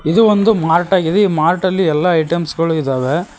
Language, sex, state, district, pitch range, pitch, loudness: Kannada, male, Karnataka, Koppal, 160-190 Hz, 170 Hz, -14 LUFS